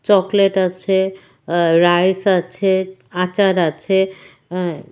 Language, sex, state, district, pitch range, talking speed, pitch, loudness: Bengali, female, Tripura, West Tripura, 180-190 Hz, 95 wpm, 185 Hz, -17 LUFS